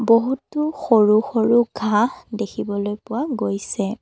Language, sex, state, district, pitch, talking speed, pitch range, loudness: Assamese, female, Assam, Kamrup Metropolitan, 225 Hz, 105 wpm, 210-250 Hz, -20 LUFS